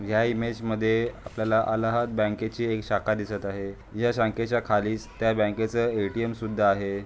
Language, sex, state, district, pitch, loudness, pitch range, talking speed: Marathi, male, Maharashtra, Aurangabad, 110 Hz, -26 LUFS, 105-115 Hz, 155 wpm